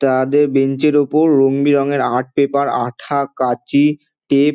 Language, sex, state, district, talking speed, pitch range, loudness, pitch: Bengali, male, West Bengal, Dakshin Dinajpur, 170 wpm, 135-145 Hz, -15 LUFS, 140 Hz